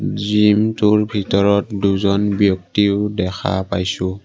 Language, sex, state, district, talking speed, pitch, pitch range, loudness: Assamese, male, Assam, Kamrup Metropolitan, 85 wpm, 100 Hz, 100-105 Hz, -17 LUFS